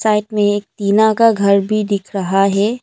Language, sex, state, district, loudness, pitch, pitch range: Hindi, female, Arunachal Pradesh, Lower Dibang Valley, -15 LUFS, 205 Hz, 200-215 Hz